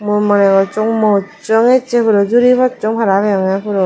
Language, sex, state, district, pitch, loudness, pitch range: Chakma, female, Tripura, Dhalai, 210 Hz, -13 LUFS, 200-230 Hz